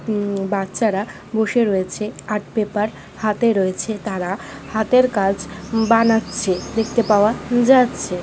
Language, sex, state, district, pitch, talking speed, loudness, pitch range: Bengali, female, West Bengal, Kolkata, 215 Hz, 110 wpm, -19 LUFS, 195-225 Hz